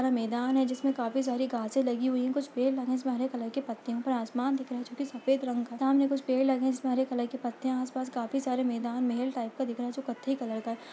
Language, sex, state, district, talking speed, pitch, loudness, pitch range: Hindi, female, Uttar Pradesh, Budaun, 315 wpm, 255 Hz, -31 LUFS, 240-265 Hz